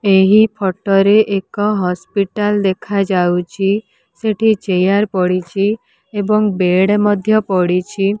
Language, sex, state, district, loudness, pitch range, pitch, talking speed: Odia, female, Odisha, Nuapada, -15 LUFS, 190-210 Hz, 200 Hz, 100 wpm